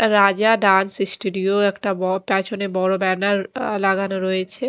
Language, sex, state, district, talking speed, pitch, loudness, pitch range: Bengali, female, Odisha, Khordha, 140 wpm, 195 Hz, -19 LUFS, 190-200 Hz